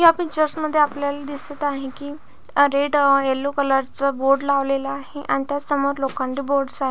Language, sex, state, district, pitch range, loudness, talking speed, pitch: Marathi, female, Maharashtra, Pune, 275-290 Hz, -21 LUFS, 180 wpm, 280 Hz